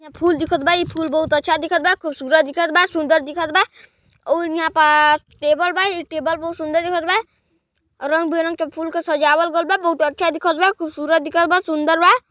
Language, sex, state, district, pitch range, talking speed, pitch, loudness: Chhattisgarhi, female, Chhattisgarh, Balrampur, 310-345 Hz, 200 wpm, 330 Hz, -17 LUFS